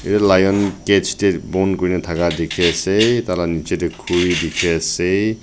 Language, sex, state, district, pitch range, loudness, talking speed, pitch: Nagamese, male, Nagaland, Dimapur, 85-100 Hz, -17 LUFS, 165 wpm, 90 Hz